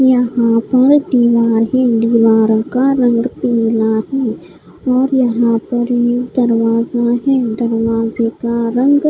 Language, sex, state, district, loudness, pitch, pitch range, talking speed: Hindi, female, Odisha, Khordha, -14 LUFS, 235 Hz, 230-255 Hz, 120 wpm